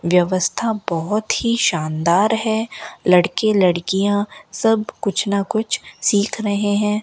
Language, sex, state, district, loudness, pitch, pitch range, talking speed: Hindi, female, Rajasthan, Bikaner, -19 LUFS, 205 Hz, 185-220 Hz, 120 wpm